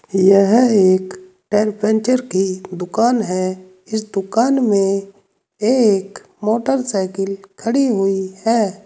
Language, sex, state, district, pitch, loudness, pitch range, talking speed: Hindi, male, Uttar Pradesh, Saharanpur, 200 Hz, -17 LUFS, 190-225 Hz, 100 wpm